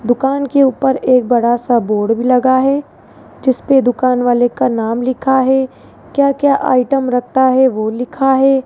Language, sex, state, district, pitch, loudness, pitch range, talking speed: Hindi, male, Rajasthan, Jaipur, 260 Hz, -14 LUFS, 245-270 Hz, 175 wpm